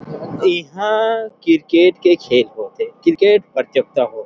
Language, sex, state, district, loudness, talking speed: Chhattisgarhi, male, Chhattisgarh, Rajnandgaon, -16 LUFS, 100 wpm